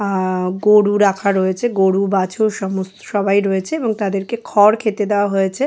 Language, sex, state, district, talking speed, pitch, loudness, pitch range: Bengali, female, West Bengal, Jalpaiguri, 160 wpm, 200 Hz, -17 LUFS, 190-210 Hz